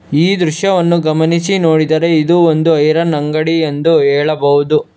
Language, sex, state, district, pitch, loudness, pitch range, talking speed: Kannada, male, Karnataka, Bangalore, 160 Hz, -12 LUFS, 155-170 Hz, 120 wpm